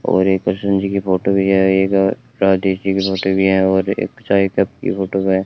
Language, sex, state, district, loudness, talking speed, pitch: Hindi, male, Rajasthan, Bikaner, -16 LUFS, 240 wpm, 95 Hz